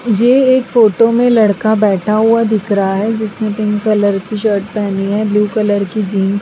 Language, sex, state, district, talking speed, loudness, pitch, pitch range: Hindi, female, Bihar, West Champaran, 205 wpm, -13 LUFS, 215 Hz, 205-220 Hz